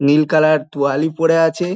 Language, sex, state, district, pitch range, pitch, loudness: Bengali, male, West Bengal, Dakshin Dinajpur, 150-165 Hz, 155 Hz, -15 LUFS